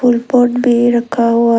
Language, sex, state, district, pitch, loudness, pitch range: Hindi, female, Arunachal Pradesh, Lower Dibang Valley, 240 Hz, -13 LUFS, 235-245 Hz